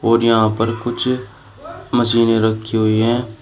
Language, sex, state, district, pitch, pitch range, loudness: Hindi, male, Uttar Pradesh, Shamli, 115 Hz, 110-120 Hz, -17 LUFS